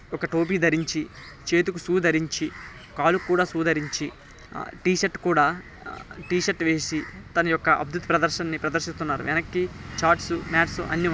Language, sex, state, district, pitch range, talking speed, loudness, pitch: Telugu, male, Telangana, Nalgonda, 160-175 Hz, 120 wpm, -24 LUFS, 165 Hz